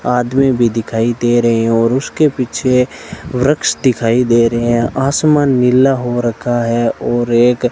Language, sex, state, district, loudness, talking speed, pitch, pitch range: Hindi, male, Rajasthan, Bikaner, -14 LUFS, 170 wpm, 120 Hz, 120-130 Hz